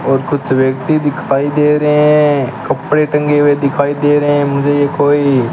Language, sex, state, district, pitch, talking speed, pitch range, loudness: Hindi, male, Rajasthan, Bikaner, 145 Hz, 185 wpm, 140-150 Hz, -12 LUFS